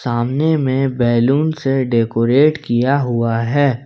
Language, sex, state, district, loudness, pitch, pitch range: Hindi, male, Jharkhand, Ranchi, -16 LUFS, 130 Hz, 120-145 Hz